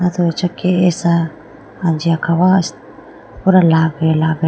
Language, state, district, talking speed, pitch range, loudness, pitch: Idu Mishmi, Arunachal Pradesh, Lower Dibang Valley, 120 wpm, 160-180 Hz, -15 LUFS, 170 Hz